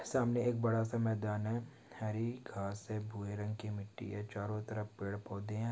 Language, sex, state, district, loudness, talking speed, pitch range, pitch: Hindi, male, Chhattisgarh, Jashpur, -39 LUFS, 200 wpm, 105-115 Hz, 110 Hz